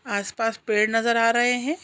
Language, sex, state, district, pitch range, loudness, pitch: Hindi, female, Chhattisgarh, Sukma, 215-240 Hz, -22 LUFS, 230 Hz